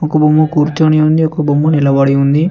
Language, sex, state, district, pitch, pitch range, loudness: Telugu, male, Telangana, Mahabubabad, 155 Hz, 145-155 Hz, -11 LUFS